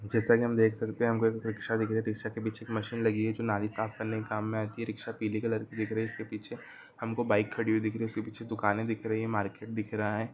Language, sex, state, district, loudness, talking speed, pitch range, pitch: Hindi, male, Bihar, Saran, -32 LUFS, 325 wpm, 110-115 Hz, 110 Hz